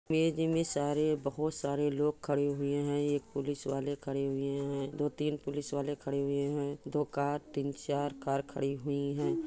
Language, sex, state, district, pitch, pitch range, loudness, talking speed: Hindi, male, Jharkhand, Sahebganj, 145 Hz, 140-145 Hz, -34 LUFS, 190 wpm